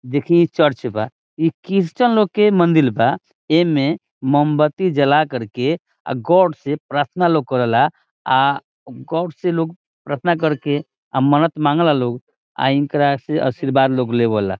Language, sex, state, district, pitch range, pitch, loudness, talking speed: Bhojpuri, male, Bihar, Saran, 130-165 Hz, 145 Hz, -18 LUFS, 135 wpm